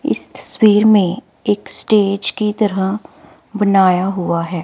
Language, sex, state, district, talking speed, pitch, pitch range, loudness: Hindi, female, Himachal Pradesh, Shimla, 130 wpm, 200 Hz, 190-210 Hz, -15 LUFS